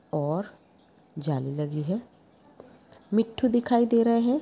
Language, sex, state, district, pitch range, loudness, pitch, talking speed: Hindi, female, Goa, North and South Goa, 150-235 Hz, -26 LUFS, 215 Hz, 120 wpm